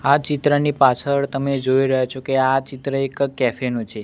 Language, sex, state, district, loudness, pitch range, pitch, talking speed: Gujarati, male, Gujarat, Gandhinagar, -19 LUFS, 130-140 Hz, 135 Hz, 210 wpm